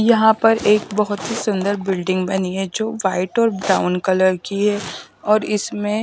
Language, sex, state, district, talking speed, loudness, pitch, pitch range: Hindi, female, Bihar, West Champaran, 180 wpm, -19 LUFS, 205 Hz, 190-220 Hz